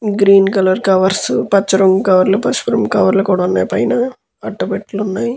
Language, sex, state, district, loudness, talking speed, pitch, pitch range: Telugu, male, Andhra Pradesh, Guntur, -14 LUFS, 155 wpm, 195 Hz, 190-200 Hz